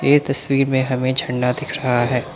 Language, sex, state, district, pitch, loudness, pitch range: Hindi, male, Assam, Kamrup Metropolitan, 130 Hz, -19 LUFS, 125-140 Hz